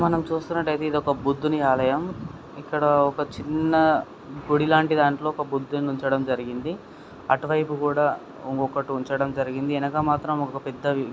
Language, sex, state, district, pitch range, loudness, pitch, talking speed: Telugu, male, Karnataka, Dharwad, 135-155 Hz, -24 LUFS, 145 Hz, 135 wpm